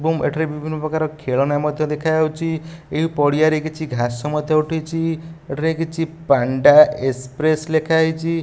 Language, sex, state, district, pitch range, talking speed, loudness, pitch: Odia, male, Odisha, Nuapada, 150-160 Hz, 120 wpm, -19 LUFS, 155 Hz